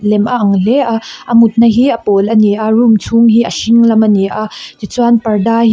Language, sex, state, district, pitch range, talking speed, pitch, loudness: Mizo, female, Mizoram, Aizawl, 210-230 Hz, 250 wpm, 225 Hz, -10 LUFS